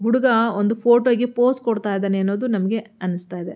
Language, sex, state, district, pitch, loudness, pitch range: Kannada, female, Karnataka, Mysore, 225 Hz, -20 LUFS, 200-240 Hz